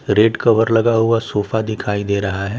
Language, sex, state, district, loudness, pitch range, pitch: Hindi, male, Bihar, West Champaran, -17 LUFS, 100-115 Hz, 110 Hz